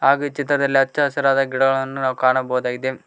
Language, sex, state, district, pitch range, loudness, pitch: Kannada, male, Karnataka, Koppal, 130-140 Hz, -19 LUFS, 135 Hz